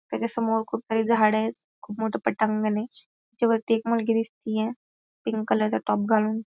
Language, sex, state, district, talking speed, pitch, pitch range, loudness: Marathi, female, Maharashtra, Pune, 155 wpm, 220 Hz, 215-230 Hz, -25 LUFS